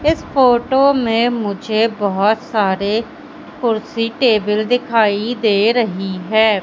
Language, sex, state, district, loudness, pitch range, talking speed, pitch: Hindi, female, Madhya Pradesh, Katni, -16 LUFS, 210-240 Hz, 110 wpm, 225 Hz